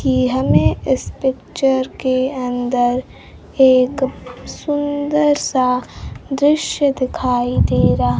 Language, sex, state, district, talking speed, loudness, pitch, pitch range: Hindi, female, Bihar, Kaimur, 95 wpm, -17 LUFS, 260 Hz, 255-280 Hz